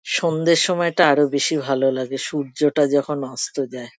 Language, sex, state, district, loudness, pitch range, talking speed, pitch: Bengali, female, West Bengal, Kolkata, -20 LUFS, 135-160 Hz, 150 wpm, 145 Hz